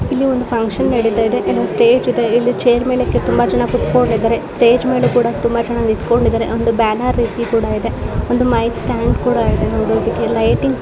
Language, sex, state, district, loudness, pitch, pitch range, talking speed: Kannada, female, Karnataka, Mysore, -15 LUFS, 235 Hz, 225-245 Hz, 165 wpm